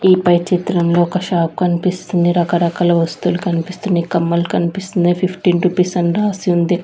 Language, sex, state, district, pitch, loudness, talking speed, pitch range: Telugu, female, Andhra Pradesh, Sri Satya Sai, 175 Hz, -16 LUFS, 160 wpm, 175-185 Hz